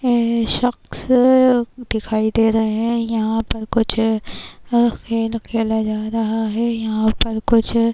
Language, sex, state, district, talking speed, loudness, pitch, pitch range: Urdu, female, Bihar, Kishanganj, 135 wpm, -18 LUFS, 225 Hz, 220-235 Hz